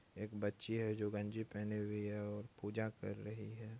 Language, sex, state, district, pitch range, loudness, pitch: Hindi, male, Bihar, Purnia, 105-110 Hz, -44 LUFS, 105 Hz